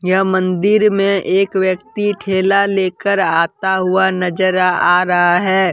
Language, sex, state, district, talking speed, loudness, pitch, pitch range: Hindi, male, Jharkhand, Deoghar, 135 wpm, -15 LUFS, 190 Hz, 185-195 Hz